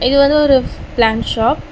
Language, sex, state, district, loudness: Tamil, female, Tamil Nadu, Chennai, -14 LUFS